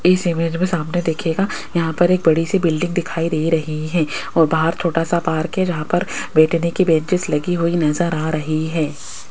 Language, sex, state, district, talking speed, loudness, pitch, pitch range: Hindi, female, Rajasthan, Jaipur, 205 wpm, -18 LUFS, 165 Hz, 155-175 Hz